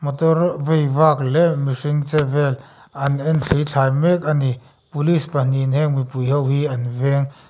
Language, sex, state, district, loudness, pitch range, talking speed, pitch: Mizo, male, Mizoram, Aizawl, -19 LUFS, 135-155 Hz, 175 wpm, 145 Hz